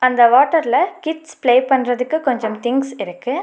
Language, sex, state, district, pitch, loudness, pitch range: Tamil, female, Tamil Nadu, Nilgiris, 260 Hz, -17 LUFS, 245-315 Hz